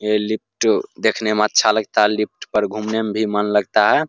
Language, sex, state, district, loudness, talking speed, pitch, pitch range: Hindi, male, Bihar, Begusarai, -18 LUFS, 235 wpm, 105 Hz, 105-110 Hz